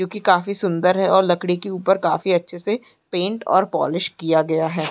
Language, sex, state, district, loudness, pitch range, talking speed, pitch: Hindi, female, Uttar Pradesh, Muzaffarnagar, -19 LUFS, 175-195 Hz, 205 wpm, 185 Hz